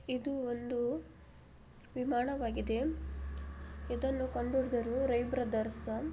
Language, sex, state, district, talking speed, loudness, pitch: Kannada, female, Karnataka, Belgaum, 100 wpm, -36 LUFS, 240 Hz